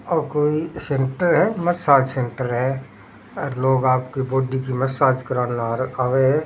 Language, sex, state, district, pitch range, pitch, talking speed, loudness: Rajasthani, male, Rajasthan, Churu, 130-145 Hz, 130 Hz, 150 wpm, -21 LUFS